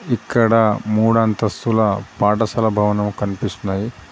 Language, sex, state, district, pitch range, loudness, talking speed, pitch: Telugu, male, Telangana, Adilabad, 105-115 Hz, -18 LUFS, 85 wpm, 110 Hz